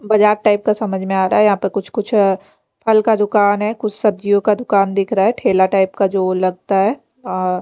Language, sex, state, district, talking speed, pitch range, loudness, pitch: Hindi, female, Bihar, Patna, 250 wpm, 195-215 Hz, -16 LUFS, 205 Hz